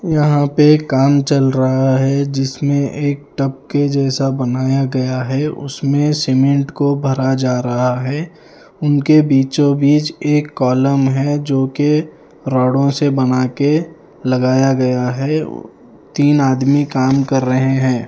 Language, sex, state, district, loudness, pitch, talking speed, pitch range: Hindi, male, Himachal Pradesh, Shimla, -15 LUFS, 140 Hz, 140 wpm, 130-145 Hz